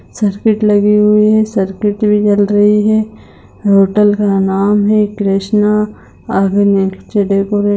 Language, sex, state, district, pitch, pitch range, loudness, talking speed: Hindi, female, Bihar, Lakhisarai, 205 Hz, 200-210 Hz, -12 LUFS, 110 wpm